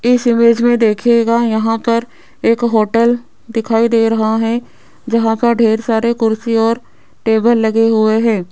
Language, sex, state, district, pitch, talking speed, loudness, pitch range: Hindi, female, Rajasthan, Jaipur, 230 Hz, 155 wpm, -14 LUFS, 225-235 Hz